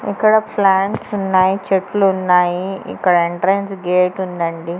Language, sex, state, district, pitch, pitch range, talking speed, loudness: Telugu, female, Andhra Pradesh, Annamaya, 190 Hz, 180-195 Hz, 85 wpm, -16 LUFS